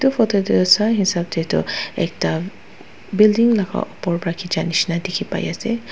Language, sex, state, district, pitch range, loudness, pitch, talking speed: Nagamese, female, Nagaland, Dimapur, 175-215 Hz, -19 LUFS, 195 Hz, 180 wpm